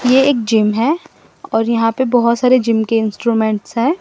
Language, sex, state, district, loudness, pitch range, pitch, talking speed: Hindi, female, Assam, Sonitpur, -15 LUFS, 225-255 Hz, 235 Hz, 195 wpm